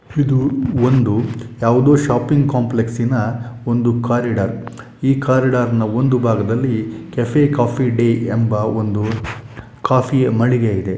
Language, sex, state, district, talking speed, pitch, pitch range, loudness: Kannada, male, Karnataka, Shimoga, 115 wpm, 120 Hz, 115-130 Hz, -17 LUFS